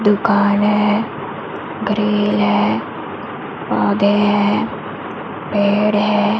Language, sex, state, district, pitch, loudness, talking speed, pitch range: Hindi, female, Maharashtra, Mumbai Suburban, 210 Hz, -17 LUFS, 75 wpm, 205-210 Hz